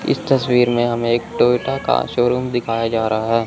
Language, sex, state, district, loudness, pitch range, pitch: Hindi, male, Chandigarh, Chandigarh, -18 LUFS, 115-125 Hz, 120 Hz